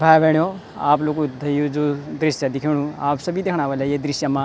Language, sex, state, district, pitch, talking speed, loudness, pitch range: Garhwali, male, Uttarakhand, Tehri Garhwal, 145 Hz, 215 wpm, -21 LUFS, 145-160 Hz